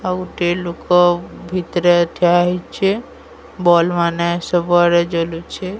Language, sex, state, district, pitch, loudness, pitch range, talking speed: Odia, female, Odisha, Sambalpur, 175 Hz, -17 LUFS, 170-180 Hz, 115 wpm